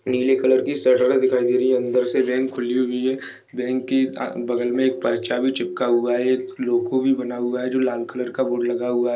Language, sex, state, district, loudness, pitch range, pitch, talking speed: Hindi, male, Goa, North and South Goa, -21 LUFS, 120-130 Hz, 125 Hz, 260 wpm